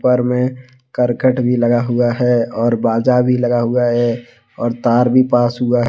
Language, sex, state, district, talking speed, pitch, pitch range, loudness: Hindi, male, Jharkhand, Deoghar, 165 wpm, 120 Hz, 120-125 Hz, -15 LUFS